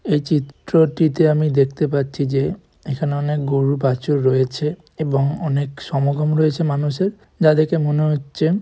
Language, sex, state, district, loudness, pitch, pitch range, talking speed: Bengali, male, West Bengal, Purulia, -19 LUFS, 150 Hz, 140-155 Hz, 145 wpm